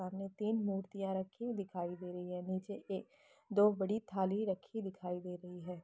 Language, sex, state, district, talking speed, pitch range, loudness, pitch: Hindi, female, Bihar, Lakhisarai, 185 wpm, 180-210 Hz, -39 LUFS, 195 Hz